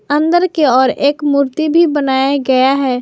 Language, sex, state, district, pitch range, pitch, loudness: Hindi, female, Jharkhand, Garhwa, 265-310 Hz, 280 Hz, -13 LUFS